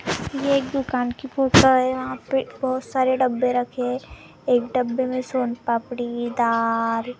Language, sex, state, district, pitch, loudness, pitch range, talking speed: Hindi, female, Maharashtra, Gondia, 255 Hz, -22 LUFS, 240-260 Hz, 160 wpm